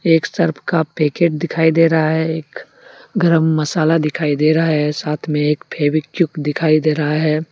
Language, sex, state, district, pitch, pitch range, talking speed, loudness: Hindi, male, Jharkhand, Deoghar, 155 Hz, 150-165 Hz, 185 wpm, -16 LUFS